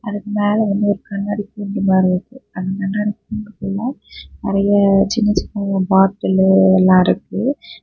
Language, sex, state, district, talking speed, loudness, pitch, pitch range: Tamil, female, Tamil Nadu, Kanyakumari, 125 wpm, -17 LUFS, 200 Hz, 190-210 Hz